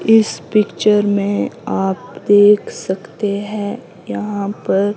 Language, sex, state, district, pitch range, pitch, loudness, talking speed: Hindi, female, Himachal Pradesh, Shimla, 195-210 Hz, 205 Hz, -17 LUFS, 110 wpm